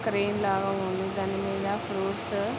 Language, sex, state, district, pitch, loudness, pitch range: Telugu, female, Andhra Pradesh, Krishna, 195 Hz, -29 LUFS, 195-205 Hz